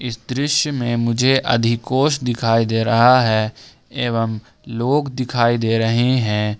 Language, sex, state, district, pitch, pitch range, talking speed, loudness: Hindi, male, Jharkhand, Ranchi, 120 Hz, 115-130 Hz, 135 wpm, -18 LUFS